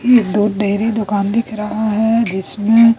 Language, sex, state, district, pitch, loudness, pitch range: Hindi, female, Chhattisgarh, Raipur, 215 Hz, -15 LUFS, 205-230 Hz